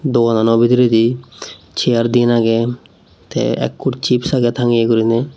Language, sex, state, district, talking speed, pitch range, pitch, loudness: Chakma, male, Tripura, Unakoti, 125 wpm, 115-125 Hz, 120 Hz, -15 LUFS